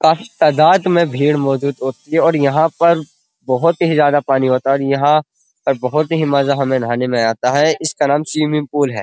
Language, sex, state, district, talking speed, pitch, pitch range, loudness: Hindi, male, Uttar Pradesh, Muzaffarnagar, 205 wpm, 145 Hz, 135-160 Hz, -15 LUFS